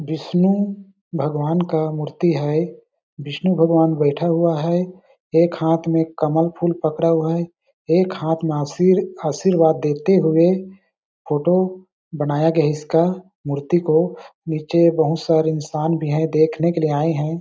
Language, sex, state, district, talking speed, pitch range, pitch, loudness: Hindi, male, Chhattisgarh, Balrampur, 150 wpm, 155-175 Hz, 165 Hz, -19 LUFS